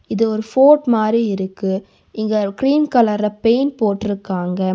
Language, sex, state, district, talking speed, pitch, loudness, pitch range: Tamil, female, Tamil Nadu, Nilgiris, 125 wpm, 215 Hz, -17 LUFS, 195-235 Hz